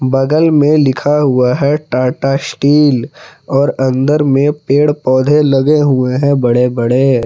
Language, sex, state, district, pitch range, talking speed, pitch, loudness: Hindi, male, Jharkhand, Palamu, 130-150 Hz, 140 wpm, 135 Hz, -12 LUFS